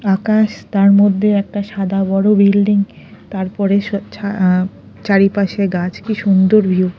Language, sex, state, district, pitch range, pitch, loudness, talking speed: Bengali, female, Odisha, Khordha, 190-205 Hz, 200 Hz, -15 LUFS, 135 wpm